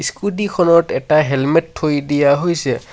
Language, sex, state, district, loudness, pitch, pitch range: Assamese, male, Assam, Sonitpur, -16 LUFS, 155 Hz, 145-170 Hz